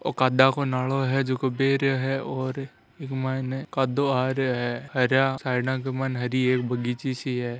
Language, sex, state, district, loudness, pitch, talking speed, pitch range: Hindi, male, Rajasthan, Nagaur, -25 LUFS, 130 Hz, 190 wpm, 125-135 Hz